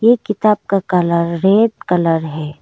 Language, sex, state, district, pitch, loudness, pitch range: Hindi, female, Arunachal Pradesh, Lower Dibang Valley, 180 Hz, -15 LUFS, 170-210 Hz